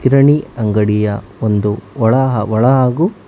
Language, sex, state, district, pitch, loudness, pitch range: Kannada, male, Karnataka, Bangalore, 110 Hz, -14 LUFS, 105-135 Hz